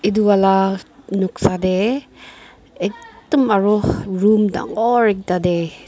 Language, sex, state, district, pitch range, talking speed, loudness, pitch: Nagamese, female, Nagaland, Dimapur, 190-220 Hz, 100 wpm, -17 LUFS, 200 Hz